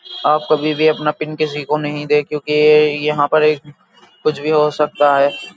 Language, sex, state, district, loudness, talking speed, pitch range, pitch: Hindi, male, Uttar Pradesh, Jyotiba Phule Nagar, -16 LUFS, 195 wpm, 150-155 Hz, 150 Hz